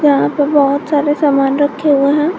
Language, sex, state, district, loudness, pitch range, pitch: Hindi, female, Jharkhand, Garhwa, -13 LUFS, 280-295 Hz, 290 Hz